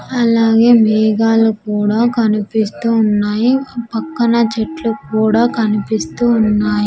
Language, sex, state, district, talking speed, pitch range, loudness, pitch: Telugu, female, Andhra Pradesh, Sri Satya Sai, 95 wpm, 215-235 Hz, -14 LUFS, 225 Hz